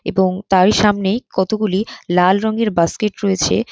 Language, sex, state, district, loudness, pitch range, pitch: Bengali, female, West Bengal, North 24 Parganas, -16 LUFS, 185-215 Hz, 195 Hz